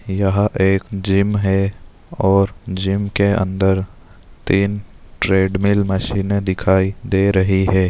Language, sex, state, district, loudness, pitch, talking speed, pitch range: Hindi, male, Bihar, Darbhanga, -17 LUFS, 95 Hz, 115 wpm, 95-100 Hz